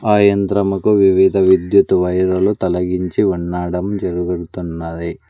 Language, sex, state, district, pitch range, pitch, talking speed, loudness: Telugu, male, Andhra Pradesh, Sri Satya Sai, 90-100 Hz, 95 Hz, 90 wpm, -16 LUFS